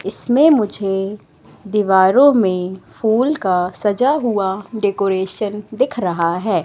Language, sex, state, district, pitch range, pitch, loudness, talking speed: Hindi, female, Madhya Pradesh, Katni, 190-225 Hz, 205 Hz, -17 LUFS, 110 wpm